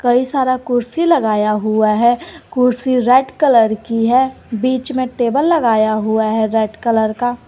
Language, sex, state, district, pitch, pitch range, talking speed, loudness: Hindi, female, Jharkhand, Garhwa, 245 Hz, 220-255 Hz, 160 wpm, -15 LUFS